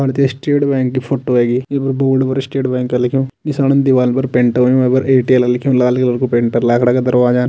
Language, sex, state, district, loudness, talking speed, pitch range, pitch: Kumaoni, male, Uttarakhand, Tehri Garhwal, -14 LUFS, 230 wpm, 125-135 Hz, 130 Hz